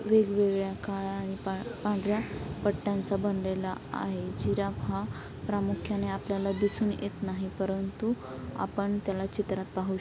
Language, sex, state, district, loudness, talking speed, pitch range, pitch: Marathi, female, Maharashtra, Pune, -32 LUFS, 125 wpm, 190-205 Hz, 195 Hz